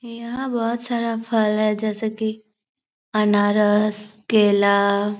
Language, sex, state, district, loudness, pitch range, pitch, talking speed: Hindi, male, Jharkhand, Jamtara, -20 LUFS, 210-230 Hz, 215 Hz, 115 wpm